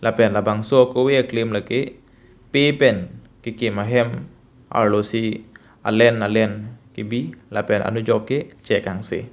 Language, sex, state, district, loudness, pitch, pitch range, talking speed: Karbi, male, Assam, Karbi Anglong, -20 LUFS, 115 Hz, 105-120 Hz, 120 wpm